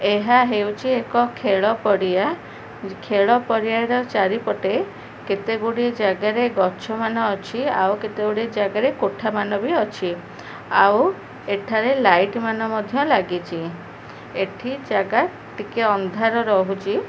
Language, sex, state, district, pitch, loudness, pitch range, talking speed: Odia, female, Odisha, Khordha, 215 Hz, -20 LUFS, 200-235 Hz, 110 wpm